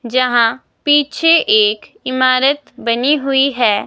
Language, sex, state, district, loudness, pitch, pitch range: Hindi, female, Himachal Pradesh, Shimla, -14 LUFS, 270 Hz, 245-295 Hz